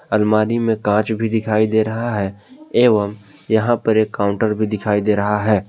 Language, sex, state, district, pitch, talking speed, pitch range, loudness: Hindi, male, Jharkhand, Palamu, 110 Hz, 190 wpm, 105-110 Hz, -18 LUFS